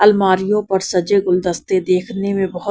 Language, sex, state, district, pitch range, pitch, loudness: Hindi, female, Punjab, Kapurthala, 185-200 Hz, 190 Hz, -17 LUFS